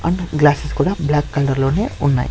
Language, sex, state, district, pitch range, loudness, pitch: Telugu, male, Andhra Pradesh, Sri Satya Sai, 140-165 Hz, -17 LUFS, 150 Hz